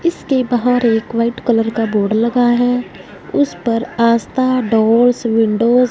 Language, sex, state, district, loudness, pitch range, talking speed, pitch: Hindi, female, Punjab, Fazilka, -15 LUFS, 225-245 Hz, 150 wpm, 235 Hz